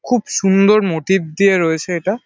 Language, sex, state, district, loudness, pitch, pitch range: Bengali, male, West Bengal, Paschim Medinipur, -15 LUFS, 190 Hz, 175-205 Hz